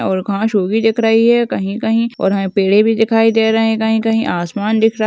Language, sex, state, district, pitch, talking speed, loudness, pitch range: Hindi, female, Maharashtra, Chandrapur, 220 Hz, 260 wpm, -14 LUFS, 200-225 Hz